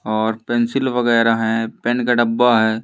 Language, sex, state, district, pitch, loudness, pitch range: Hindi, male, Madhya Pradesh, Umaria, 115 Hz, -17 LUFS, 110-120 Hz